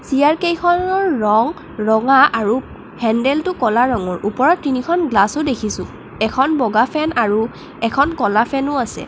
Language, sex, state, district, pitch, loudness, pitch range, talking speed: Assamese, female, Assam, Kamrup Metropolitan, 255 Hz, -17 LUFS, 220-300 Hz, 125 wpm